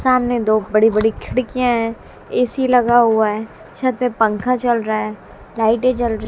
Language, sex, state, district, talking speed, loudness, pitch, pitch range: Hindi, female, Bihar, West Champaran, 170 wpm, -17 LUFS, 235 Hz, 220-250 Hz